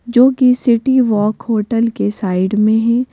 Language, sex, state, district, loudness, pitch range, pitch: Hindi, female, Madhya Pradesh, Bhopal, -14 LUFS, 210-250 Hz, 230 Hz